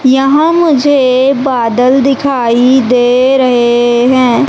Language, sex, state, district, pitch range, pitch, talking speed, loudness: Hindi, female, Madhya Pradesh, Umaria, 245-275 Hz, 260 Hz, 95 wpm, -9 LUFS